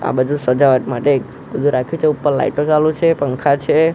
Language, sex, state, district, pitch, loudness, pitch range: Gujarati, male, Gujarat, Gandhinagar, 145 Hz, -16 LUFS, 130-155 Hz